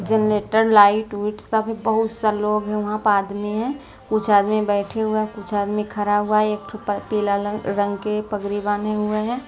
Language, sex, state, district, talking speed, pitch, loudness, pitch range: Hindi, female, Bihar, Patna, 215 wpm, 210 Hz, -21 LUFS, 205-215 Hz